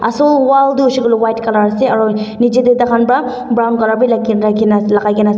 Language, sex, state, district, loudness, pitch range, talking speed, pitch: Nagamese, female, Nagaland, Dimapur, -12 LUFS, 215-250 Hz, 210 wpm, 230 Hz